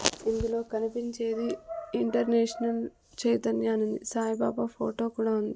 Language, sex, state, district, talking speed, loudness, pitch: Telugu, female, Andhra Pradesh, Sri Satya Sai, 110 wpm, -30 LUFS, 225 Hz